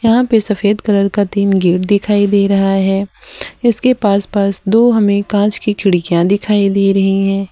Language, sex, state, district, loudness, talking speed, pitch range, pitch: Hindi, female, Gujarat, Valsad, -13 LUFS, 185 wpm, 195-210 Hz, 200 Hz